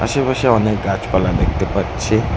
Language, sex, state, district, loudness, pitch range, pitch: Bengali, female, West Bengal, Cooch Behar, -17 LUFS, 95-110 Hz, 100 Hz